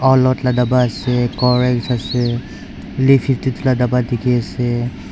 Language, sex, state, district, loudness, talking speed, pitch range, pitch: Nagamese, male, Nagaland, Dimapur, -16 LUFS, 95 wpm, 120-130 Hz, 125 Hz